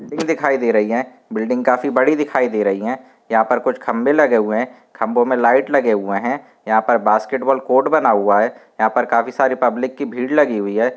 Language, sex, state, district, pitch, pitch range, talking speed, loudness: Hindi, male, Andhra Pradesh, Guntur, 125 Hz, 110-135 Hz, 225 wpm, -17 LUFS